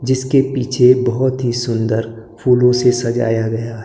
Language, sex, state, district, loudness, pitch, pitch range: Hindi, male, Maharashtra, Gondia, -15 LUFS, 125 Hz, 115-130 Hz